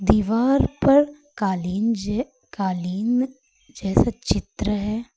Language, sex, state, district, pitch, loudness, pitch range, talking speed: Hindi, female, Uttar Pradesh, Lucknow, 225 Hz, -22 LUFS, 205-260 Hz, 80 wpm